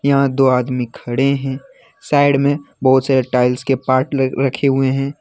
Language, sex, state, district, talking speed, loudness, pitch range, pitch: Hindi, male, Jharkhand, Deoghar, 170 wpm, -16 LUFS, 130-140 Hz, 135 Hz